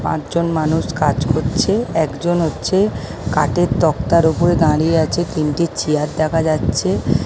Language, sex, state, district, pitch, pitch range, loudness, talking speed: Bengali, female, West Bengal, Malda, 160 Hz, 150-170 Hz, -17 LUFS, 125 wpm